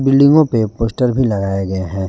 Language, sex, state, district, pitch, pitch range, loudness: Hindi, male, Jharkhand, Garhwa, 115 Hz, 95-130 Hz, -15 LUFS